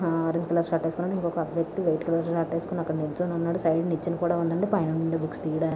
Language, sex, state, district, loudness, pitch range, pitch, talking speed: Telugu, female, Andhra Pradesh, Visakhapatnam, -27 LUFS, 165-170 Hz, 165 Hz, 220 wpm